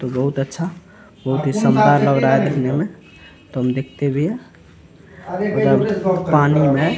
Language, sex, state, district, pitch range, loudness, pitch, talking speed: Hindi, male, Bihar, Araria, 135-180 Hz, -18 LUFS, 150 Hz, 165 wpm